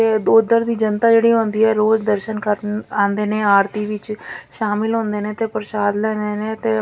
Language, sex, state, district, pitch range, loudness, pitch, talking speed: Punjabi, female, Punjab, Fazilka, 210-220 Hz, -18 LUFS, 215 Hz, 200 wpm